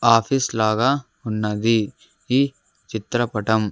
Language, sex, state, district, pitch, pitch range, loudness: Telugu, male, Andhra Pradesh, Sri Satya Sai, 115 Hz, 110-130 Hz, -21 LUFS